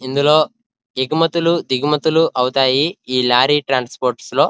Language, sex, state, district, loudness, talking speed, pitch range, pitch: Telugu, male, Andhra Pradesh, Krishna, -16 LUFS, 120 wpm, 130-160 Hz, 145 Hz